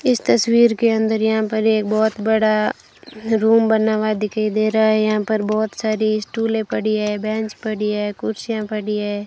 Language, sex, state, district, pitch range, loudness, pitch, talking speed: Hindi, female, Rajasthan, Bikaner, 215-220 Hz, -19 LUFS, 215 Hz, 190 wpm